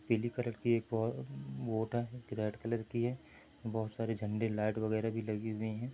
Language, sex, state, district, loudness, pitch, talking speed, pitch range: Hindi, male, Andhra Pradesh, Anantapur, -37 LUFS, 115 Hz, 200 wpm, 110-120 Hz